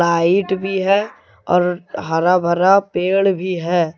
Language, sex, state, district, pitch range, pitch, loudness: Hindi, male, Jharkhand, Deoghar, 170-195 Hz, 180 Hz, -17 LUFS